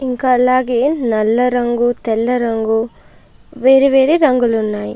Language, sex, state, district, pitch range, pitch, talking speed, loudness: Telugu, female, Andhra Pradesh, Chittoor, 225-255 Hz, 245 Hz, 110 wpm, -14 LUFS